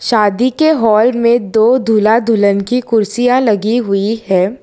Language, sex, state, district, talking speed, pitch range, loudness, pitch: Hindi, female, Gujarat, Valsad, 155 wpm, 210-245 Hz, -12 LUFS, 225 Hz